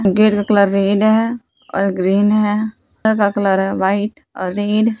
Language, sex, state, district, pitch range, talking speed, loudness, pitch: Hindi, female, Jharkhand, Palamu, 195-215 Hz, 190 wpm, -16 LUFS, 205 Hz